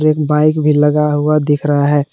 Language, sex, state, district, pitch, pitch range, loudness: Hindi, male, Jharkhand, Palamu, 150 Hz, 145-150 Hz, -13 LUFS